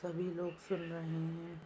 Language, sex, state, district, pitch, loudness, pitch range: Hindi, female, Uttar Pradesh, Deoria, 170 Hz, -41 LUFS, 165-175 Hz